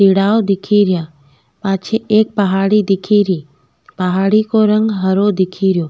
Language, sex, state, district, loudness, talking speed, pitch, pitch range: Rajasthani, female, Rajasthan, Nagaur, -14 LUFS, 110 wpm, 195 Hz, 185-210 Hz